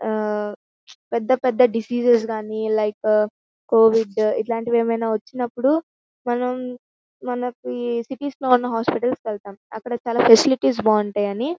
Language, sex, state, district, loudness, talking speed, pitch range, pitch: Telugu, female, Andhra Pradesh, Guntur, -21 LUFS, 110 wpm, 215-250 Hz, 230 Hz